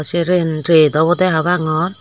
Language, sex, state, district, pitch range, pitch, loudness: Chakma, female, Tripura, Dhalai, 155-180 Hz, 165 Hz, -14 LUFS